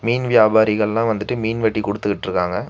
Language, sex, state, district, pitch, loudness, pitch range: Tamil, male, Tamil Nadu, Nilgiris, 110 Hz, -18 LUFS, 105-115 Hz